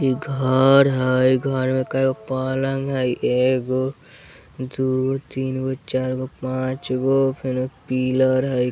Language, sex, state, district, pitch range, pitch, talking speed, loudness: Bajjika, male, Bihar, Vaishali, 130-135 Hz, 130 Hz, 130 wpm, -21 LUFS